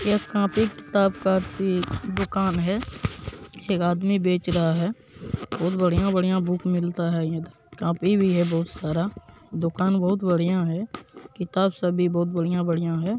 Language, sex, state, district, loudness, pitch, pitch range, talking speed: Maithili, male, Bihar, Supaul, -24 LUFS, 180 Hz, 170-195 Hz, 145 wpm